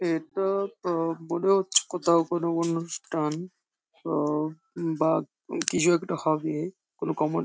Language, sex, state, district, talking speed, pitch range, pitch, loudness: Bengali, female, West Bengal, Jhargram, 135 wpm, 160-175 Hz, 165 Hz, -27 LUFS